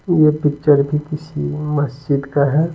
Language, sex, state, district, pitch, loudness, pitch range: Hindi, male, Bihar, Patna, 150 Hz, -18 LUFS, 140-155 Hz